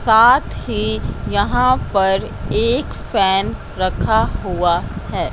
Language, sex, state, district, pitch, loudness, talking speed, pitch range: Hindi, female, Madhya Pradesh, Katni, 195 Hz, -17 LUFS, 100 wpm, 185-230 Hz